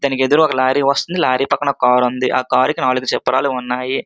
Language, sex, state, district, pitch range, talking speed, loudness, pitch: Telugu, male, Andhra Pradesh, Srikakulam, 125-140 Hz, 235 wpm, -16 LUFS, 130 Hz